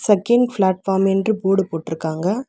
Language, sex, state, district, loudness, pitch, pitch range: Tamil, female, Tamil Nadu, Chennai, -19 LUFS, 195 Hz, 185-210 Hz